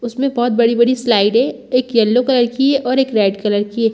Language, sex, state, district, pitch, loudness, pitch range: Hindi, female, Chhattisgarh, Balrampur, 240 Hz, -15 LUFS, 225-255 Hz